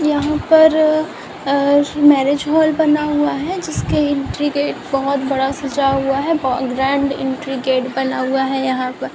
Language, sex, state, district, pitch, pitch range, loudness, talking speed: Hindi, female, Bihar, Araria, 280 Hz, 270-300 Hz, -16 LUFS, 170 wpm